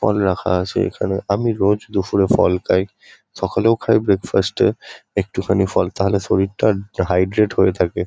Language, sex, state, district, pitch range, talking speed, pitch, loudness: Bengali, male, West Bengal, Kolkata, 95-100 Hz, 150 wpm, 95 Hz, -18 LUFS